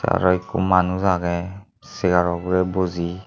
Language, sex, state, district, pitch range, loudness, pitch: Chakma, male, Tripura, Unakoti, 90-95 Hz, -21 LUFS, 90 Hz